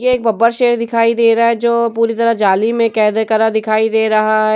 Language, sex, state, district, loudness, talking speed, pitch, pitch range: Hindi, female, Uttar Pradesh, Etah, -13 LUFS, 265 wpm, 230 Hz, 220-230 Hz